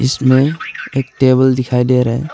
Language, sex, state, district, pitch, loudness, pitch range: Hindi, male, Arunachal Pradesh, Longding, 130 Hz, -14 LUFS, 130-135 Hz